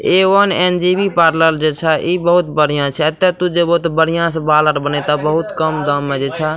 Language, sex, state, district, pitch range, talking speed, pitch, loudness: Maithili, male, Bihar, Madhepura, 150-175 Hz, 240 wpm, 160 Hz, -14 LUFS